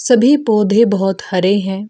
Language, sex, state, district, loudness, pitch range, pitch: Hindi, female, Bihar, Gaya, -13 LUFS, 195-230 Hz, 205 Hz